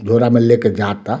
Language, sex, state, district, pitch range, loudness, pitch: Bhojpuri, male, Bihar, Muzaffarpur, 105-120 Hz, -14 LUFS, 115 Hz